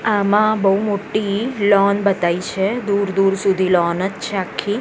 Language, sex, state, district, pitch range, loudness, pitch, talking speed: Gujarati, female, Gujarat, Gandhinagar, 195-205 Hz, -18 LUFS, 200 Hz, 160 wpm